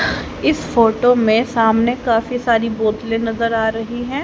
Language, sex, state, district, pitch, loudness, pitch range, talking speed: Hindi, female, Haryana, Jhajjar, 230 Hz, -17 LUFS, 225-240 Hz, 155 wpm